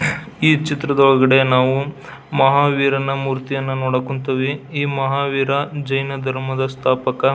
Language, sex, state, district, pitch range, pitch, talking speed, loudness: Kannada, male, Karnataka, Belgaum, 130-140 Hz, 135 Hz, 90 wpm, -18 LUFS